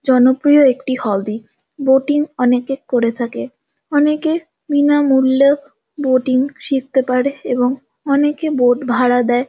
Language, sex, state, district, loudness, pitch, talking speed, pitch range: Bengali, female, West Bengal, Jhargram, -16 LUFS, 265 Hz, 115 wpm, 250-290 Hz